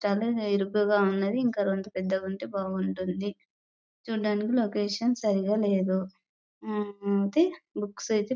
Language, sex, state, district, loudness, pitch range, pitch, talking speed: Telugu, female, Andhra Pradesh, Chittoor, -28 LUFS, 195-215 Hz, 205 Hz, 100 wpm